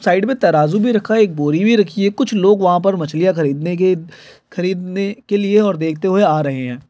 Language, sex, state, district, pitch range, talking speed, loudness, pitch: Hindi, male, Chhattisgarh, Kabirdham, 160-205 Hz, 235 wpm, -16 LUFS, 185 Hz